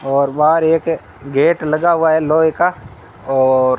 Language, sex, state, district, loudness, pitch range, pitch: Hindi, male, Rajasthan, Bikaner, -15 LUFS, 130-160 Hz, 150 Hz